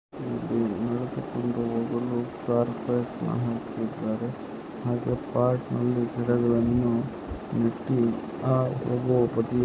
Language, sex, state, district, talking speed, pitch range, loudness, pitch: Kannada, male, Karnataka, Chamarajanagar, 75 wpm, 115-125 Hz, -27 LUFS, 120 Hz